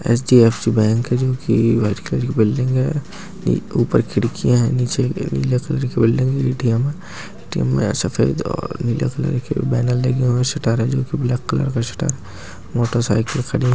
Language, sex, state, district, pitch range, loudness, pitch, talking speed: Hindi, male, Maharashtra, Chandrapur, 115-130 Hz, -19 LUFS, 125 Hz, 200 wpm